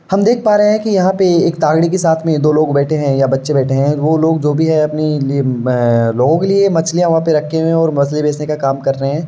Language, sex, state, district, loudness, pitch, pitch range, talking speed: Hindi, male, Uttar Pradesh, Varanasi, -13 LUFS, 155 Hz, 140-165 Hz, 280 wpm